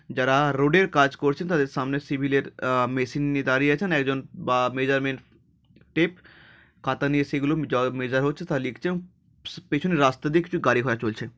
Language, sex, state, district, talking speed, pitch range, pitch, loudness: Bengali, male, West Bengal, Jhargram, 170 wpm, 130-150 Hz, 140 Hz, -24 LUFS